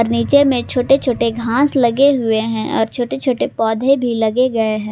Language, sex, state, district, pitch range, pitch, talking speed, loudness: Hindi, female, Jharkhand, Garhwa, 225-265 Hz, 245 Hz, 195 wpm, -16 LUFS